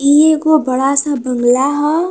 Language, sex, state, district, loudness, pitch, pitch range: Bhojpuri, female, Uttar Pradesh, Varanasi, -13 LUFS, 285 Hz, 265-310 Hz